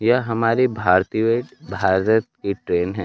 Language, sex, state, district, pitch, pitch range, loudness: Hindi, male, Bihar, Kaimur, 110 Hz, 95-115 Hz, -20 LUFS